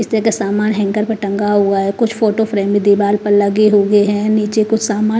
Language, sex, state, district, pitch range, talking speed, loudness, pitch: Hindi, female, Punjab, Kapurthala, 205-215 Hz, 230 wpm, -14 LUFS, 210 Hz